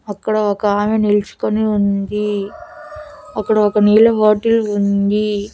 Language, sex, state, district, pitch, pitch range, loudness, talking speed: Telugu, female, Andhra Pradesh, Annamaya, 210 Hz, 205-215 Hz, -15 LUFS, 110 wpm